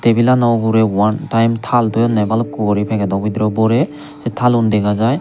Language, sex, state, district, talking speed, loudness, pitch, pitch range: Chakma, male, Tripura, Unakoti, 175 wpm, -15 LUFS, 115 Hz, 105-120 Hz